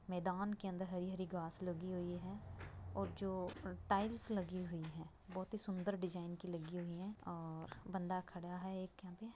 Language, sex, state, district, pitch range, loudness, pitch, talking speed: Hindi, female, Bihar, Begusarai, 175-190 Hz, -45 LUFS, 180 Hz, 175 wpm